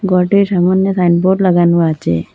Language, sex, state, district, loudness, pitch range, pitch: Bengali, female, Assam, Hailakandi, -12 LUFS, 170-190 Hz, 180 Hz